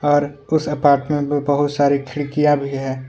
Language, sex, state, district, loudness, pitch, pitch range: Hindi, male, Jharkhand, Ranchi, -18 LUFS, 145 Hz, 140-145 Hz